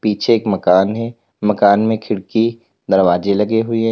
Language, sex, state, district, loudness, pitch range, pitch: Hindi, male, Uttar Pradesh, Lalitpur, -16 LUFS, 100-115 Hz, 105 Hz